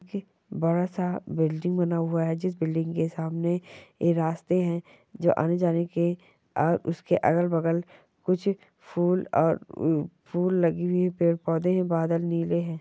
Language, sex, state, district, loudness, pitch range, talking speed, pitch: Hindi, male, Chhattisgarh, Bastar, -26 LUFS, 165-180 Hz, 155 wpm, 170 Hz